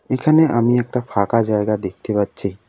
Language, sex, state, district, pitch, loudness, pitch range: Bengali, male, West Bengal, Alipurduar, 115 Hz, -18 LUFS, 100-125 Hz